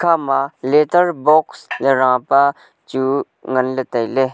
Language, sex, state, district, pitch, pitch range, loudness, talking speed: Wancho, male, Arunachal Pradesh, Longding, 135 Hz, 130-150 Hz, -17 LUFS, 110 wpm